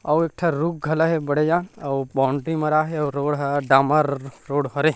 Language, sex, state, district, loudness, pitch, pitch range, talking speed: Chhattisgarhi, male, Chhattisgarh, Rajnandgaon, -22 LUFS, 150 Hz, 140-160 Hz, 220 wpm